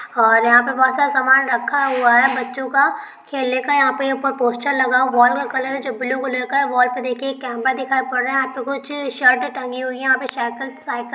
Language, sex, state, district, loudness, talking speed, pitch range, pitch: Hindi, female, Bihar, Begusarai, -18 LUFS, 235 wpm, 250-270 Hz, 260 Hz